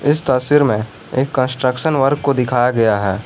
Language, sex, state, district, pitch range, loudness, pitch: Hindi, male, Jharkhand, Garhwa, 120-140 Hz, -15 LUFS, 130 Hz